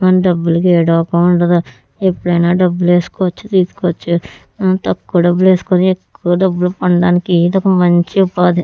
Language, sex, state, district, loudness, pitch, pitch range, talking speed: Telugu, female, Andhra Pradesh, Chittoor, -13 LUFS, 180 Hz, 175-185 Hz, 125 wpm